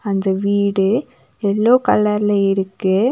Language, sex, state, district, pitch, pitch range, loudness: Tamil, female, Tamil Nadu, Nilgiris, 200 Hz, 195-210 Hz, -17 LUFS